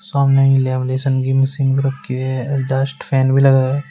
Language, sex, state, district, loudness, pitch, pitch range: Hindi, male, Uttar Pradesh, Shamli, -16 LUFS, 135 Hz, 130-135 Hz